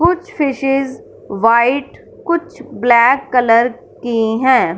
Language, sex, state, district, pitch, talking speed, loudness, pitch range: Hindi, female, Punjab, Fazilka, 260 Hz, 100 wpm, -14 LUFS, 235-330 Hz